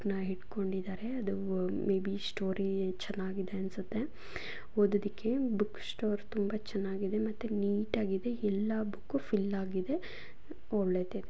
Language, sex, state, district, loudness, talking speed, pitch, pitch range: Kannada, female, Karnataka, Dharwad, -35 LUFS, 105 wpm, 200 Hz, 195-215 Hz